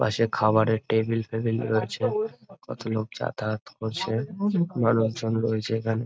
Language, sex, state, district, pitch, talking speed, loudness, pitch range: Bengali, male, West Bengal, North 24 Parganas, 115 Hz, 100 wpm, -26 LUFS, 110-115 Hz